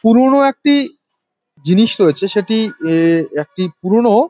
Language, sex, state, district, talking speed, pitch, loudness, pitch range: Bengali, male, West Bengal, Dakshin Dinajpur, 110 wpm, 215 Hz, -14 LUFS, 165-245 Hz